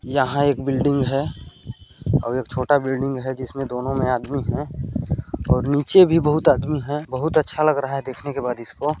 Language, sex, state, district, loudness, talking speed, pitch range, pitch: Hindi, male, Chhattisgarh, Balrampur, -21 LUFS, 195 wpm, 130-145 Hz, 135 Hz